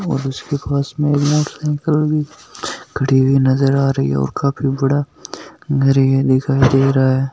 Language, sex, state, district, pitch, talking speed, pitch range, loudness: Marwari, male, Rajasthan, Nagaur, 135 Hz, 115 wpm, 135-145 Hz, -16 LUFS